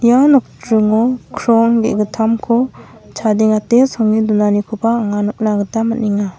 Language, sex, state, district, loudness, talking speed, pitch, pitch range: Garo, female, Meghalaya, West Garo Hills, -14 LUFS, 105 wpm, 220 Hz, 210-235 Hz